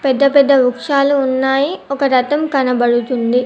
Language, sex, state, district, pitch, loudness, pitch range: Telugu, female, Telangana, Komaram Bheem, 270 Hz, -14 LUFS, 250-280 Hz